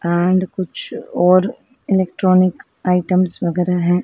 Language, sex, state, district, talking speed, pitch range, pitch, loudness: Hindi, female, Madhya Pradesh, Dhar, 105 wpm, 180-185 Hz, 185 Hz, -17 LUFS